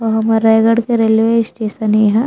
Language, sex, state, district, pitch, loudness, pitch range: Chhattisgarhi, female, Chhattisgarh, Raigarh, 225 Hz, -13 LUFS, 220-230 Hz